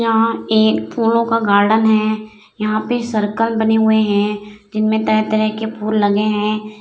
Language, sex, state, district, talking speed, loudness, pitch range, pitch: Hindi, female, Bihar, Madhepura, 160 wpm, -16 LUFS, 215-220 Hz, 215 Hz